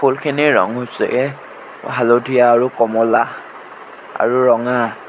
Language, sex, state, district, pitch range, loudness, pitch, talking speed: Assamese, male, Assam, Sonitpur, 115-130 Hz, -15 LUFS, 120 Hz, 95 wpm